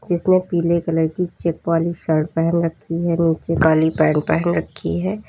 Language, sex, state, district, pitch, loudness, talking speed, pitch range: Hindi, female, Uttar Pradesh, Lalitpur, 165 Hz, -19 LUFS, 180 wpm, 160-170 Hz